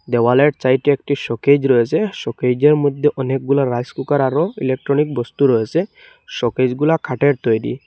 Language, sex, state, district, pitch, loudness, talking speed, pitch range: Bengali, male, Assam, Hailakandi, 140 Hz, -17 LUFS, 130 wpm, 125-145 Hz